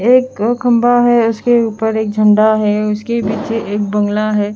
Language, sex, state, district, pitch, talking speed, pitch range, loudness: Hindi, female, Haryana, Charkhi Dadri, 220 Hz, 170 wpm, 210-235 Hz, -14 LUFS